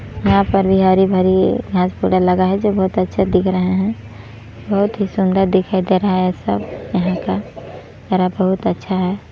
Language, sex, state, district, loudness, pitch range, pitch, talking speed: Hindi, male, Chhattisgarh, Balrampur, -16 LUFS, 170-190 Hz, 185 Hz, 180 wpm